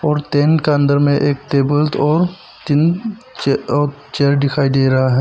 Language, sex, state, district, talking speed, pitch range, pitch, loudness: Hindi, male, Arunachal Pradesh, Papum Pare, 175 wpm, 140-150 Hz, 145 Hz, -16 LUFS